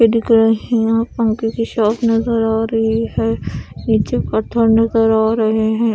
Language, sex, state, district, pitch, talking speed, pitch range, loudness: Hindi, female, Odisha, Khordha, 225 Hz, 170 wpm, 220-230 Hz, -16 LUFS